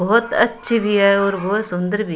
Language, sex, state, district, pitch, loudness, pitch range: Rajasthani, female, Rajasthan, Churu, 200 Hz, -17 LUFS, 190-215 Hz